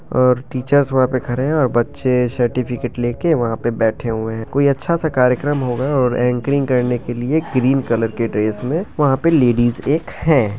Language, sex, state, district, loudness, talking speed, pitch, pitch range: Maithili, male, Bihar, Begusarai, -17 LUFS, 195 wpm, 125 Hz, 120-140 Hz